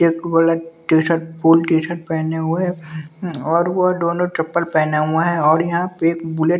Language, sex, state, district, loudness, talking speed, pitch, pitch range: Hindi, male, Bihar, West Champaran, -18 LUFS, 190 wpm, 165 Hz, 160-170 Hz